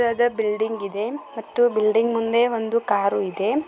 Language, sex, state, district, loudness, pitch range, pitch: Kannada, female, Karnataka, Belgaum, -22 LUFS, 210-235 Hz, 225 Hz